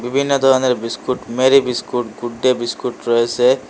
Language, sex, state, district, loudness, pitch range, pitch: Bengali, male, Assam, Hailakandi, -17 LUFS, 120-130 Hz, 125 Hz